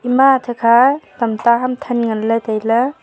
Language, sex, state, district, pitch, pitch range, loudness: Wancho, female, Arunachal Pradesh, Longding, 240 Hz, 230-255 Hz, -15 LUFS